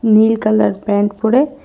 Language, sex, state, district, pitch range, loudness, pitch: Bengali, female, West Bengal, Cooch Behar, 205-235 Hz, -14 LUFS, 220 Hz